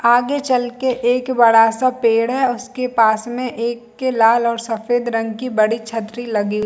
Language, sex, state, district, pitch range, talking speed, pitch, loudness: Hindi, female, Chhattisgarh, Bilaspur, 225-250 Hz, 200 wpm, 235 Hz, -17 LUFS